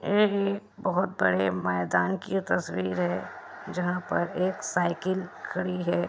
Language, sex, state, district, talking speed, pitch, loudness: Hindi, female, Bihar, Kishanganj, 130 wpm, 180 Hz, -28 LUFS